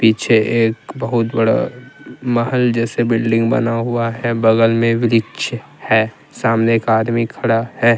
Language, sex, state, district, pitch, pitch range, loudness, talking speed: Hindi, male, Jharkhand, Deoghar, 115 Hz, 115-120 Hz, -16 LUFS, 145 wpm